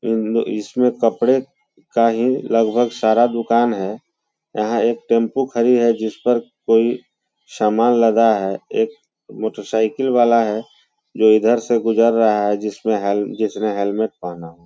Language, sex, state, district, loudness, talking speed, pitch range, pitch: Hindi, male, Bihar, Muzaffarpur, -18 LUFS, 150 wpm, 110-120 Hz, 115 Hz